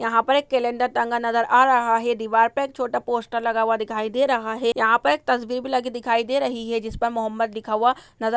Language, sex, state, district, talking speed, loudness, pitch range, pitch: Hindi, female, Uttar Pradesh, Budaun, 265 wpm, -22 LUFS, 225-250 Hz, 235 Hz